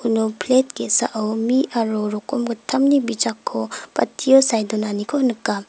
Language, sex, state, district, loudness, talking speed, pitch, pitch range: Garo, female, Meghalaya, West Garo Hills, -20 LUFS, 105 wpm, 230 Hz, 215-260 Hz